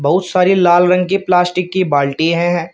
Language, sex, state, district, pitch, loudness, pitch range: Hindi, male, Uttar Pradesh, Shamli, 180 Hz, -13 LUFS, 170-185 Hz